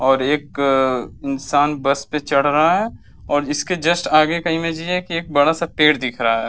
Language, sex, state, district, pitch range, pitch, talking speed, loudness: Hindi, male, Uttar Pradesh, Varanasi, 135-160 Hz, 145 Hz, 210 wpm, -18 LUFS